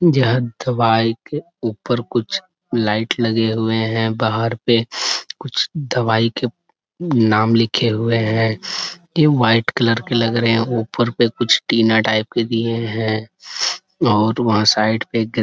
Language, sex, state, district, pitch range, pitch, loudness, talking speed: Hindi, male, Jharkhand, Sahebganj, 110-120 Hz, 115 Hz, -18 LUFS, 150 wpm